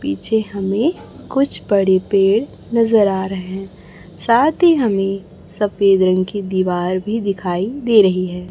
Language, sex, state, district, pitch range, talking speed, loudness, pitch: Hindi, female, Chhattisgarh, Raipur, 185-220 Hz, 150 wpm, -17 LUFS, 195 Hz